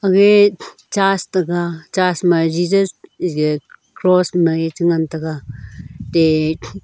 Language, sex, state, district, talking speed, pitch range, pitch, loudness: Wancho, female, Arunachal Pradesh, Longding, 130 wpm, 160-185 Hz, 170 Hz, -16 LUFS